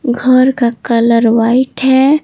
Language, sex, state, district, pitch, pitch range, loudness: Hindi, female, Bihar, Patna, 250 Hz, 235-260 Hz, -11 LUFS